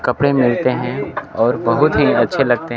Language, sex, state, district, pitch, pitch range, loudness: Hindi, male, Bihar, Kaimur, 125 Hz, 120-140 Hz, -16 LUFS